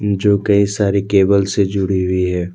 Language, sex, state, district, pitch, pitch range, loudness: Hindi, male, Jharkhand, Deoghar, 100 Hz, 95-100 Hz, -15 LUFS